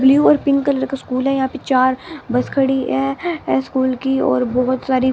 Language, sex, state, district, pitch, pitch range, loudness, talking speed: Hindi, female, Bihar, West Champaran, 265 Hz, 260-275 Hz, -17 LUFS, 210 wpm